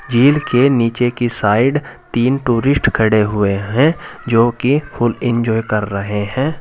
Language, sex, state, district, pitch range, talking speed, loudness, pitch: Hindi, male, Uttar Pradesh, Saharanpur, 110-135 Hz, 155 wpm, -15 LUFS, 120 Hz